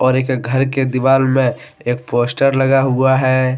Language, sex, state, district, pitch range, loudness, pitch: Hindi, male, Jharkhand, Deoghar, 130-135 Hz, -15 LUFS, 130 Hz